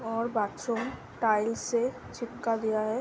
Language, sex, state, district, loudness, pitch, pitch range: Hindi, female, Uttar Pradesh, Budaun, -30 LUFS, 230 Hz, 220-235 Hz